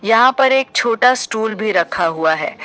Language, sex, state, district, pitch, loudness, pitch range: Hindi, female, Uttar Pradesh, Shamli, 225 Hz, -15 LUFS, 170-250 Hz